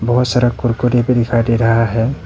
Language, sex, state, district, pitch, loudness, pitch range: Hindi, male, Arunachal Pradesh, Papum Pare, 120 Hz, -15 LUFS, 115-125 Hz